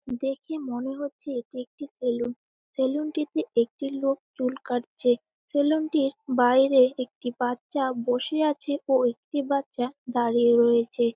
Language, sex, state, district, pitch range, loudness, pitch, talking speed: Bengali, female, West Bengal, Jalpaiguri, 245-285 Hz, -26 LUFS, 260 Hz, 130 wpm